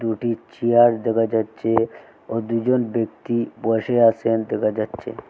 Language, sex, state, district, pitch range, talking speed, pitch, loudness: Bengali, male, Assam, Hailakandi, 115-120 Hz, 125 wpm, 115 Hz, -21 LUFS